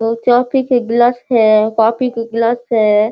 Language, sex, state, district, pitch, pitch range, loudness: Hindi, female, Bihar, Sitamarhi, 230 Hz, 225-245 Hz, -13 LUFS